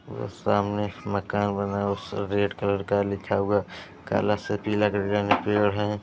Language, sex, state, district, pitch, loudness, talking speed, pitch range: Hindi, male, Uttar Pradesh, Varanasi, 100 Hz, -26 LUFS, 210 wpm, 100-105 Hz